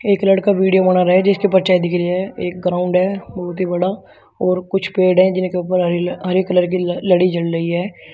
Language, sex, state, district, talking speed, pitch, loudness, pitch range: Hindi, male, Uttar Pradesh, Shamli, 230 wpm, 185 Hz, -16 LUFS, 180-190 Hz